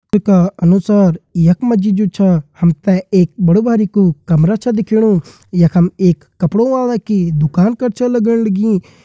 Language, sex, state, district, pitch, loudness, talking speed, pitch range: Hindi, male, Uttarakhand, Uttarkashi, 195 Hz, -13 LUFS, 170 wpm, 175-215 Hz